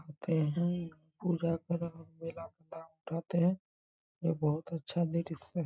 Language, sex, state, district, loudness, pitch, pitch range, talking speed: Hindi, male, Bihar, Muzaffarpur, -35 LUFS, 165 Hz, 160-170 Hz, 115 wpm